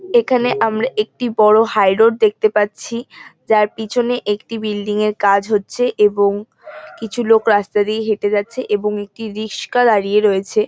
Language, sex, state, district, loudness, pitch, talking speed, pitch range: Bengali, female, West Bengal, North 24 Parganas, -16 LUFS, 215 Hz, 145 wpm, 210-230 Hz